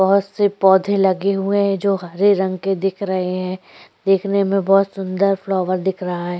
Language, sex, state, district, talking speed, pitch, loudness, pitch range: Hindi, female, Chhattisgarh, Korba, 195 wpm, 195 Hz, -18 LUFS, 185-200 Hz